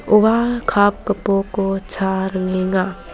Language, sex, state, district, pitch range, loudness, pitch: Garo, female, Meghalaya, West Garo Hills, 190-205 Hz, -18 LUFS, 195 Hz